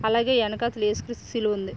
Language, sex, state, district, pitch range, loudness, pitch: Telugu, female, Andhra Pradesh, Srikakulam, 210-235 Hz, -25 LUFS, 225 Hz